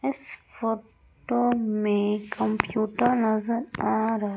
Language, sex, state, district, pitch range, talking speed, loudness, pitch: Hindi, female, Madhya Pradesh, Umaria, 210-240 Hz, 110 wpm, -26 LUFS, 220 Hz